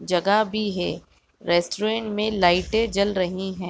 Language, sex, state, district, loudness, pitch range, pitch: Hindi, female, Chhattisgarh, Raigarh, -23 LUFS, 180-215 Hz, 200 Hz